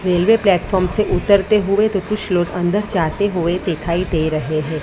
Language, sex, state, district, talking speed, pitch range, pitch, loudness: Hindi, female, Maharashtra, Mumbai Suburban, 185 wpm, 170-205 Hz, 185 Hz, -17 LUFS